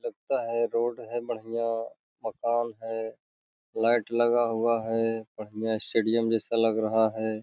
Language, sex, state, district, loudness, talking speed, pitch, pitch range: Hindi, male, Bihar, Jamui, -28 LUFS, 155 wpm, 115 Hz, 110-115 Hz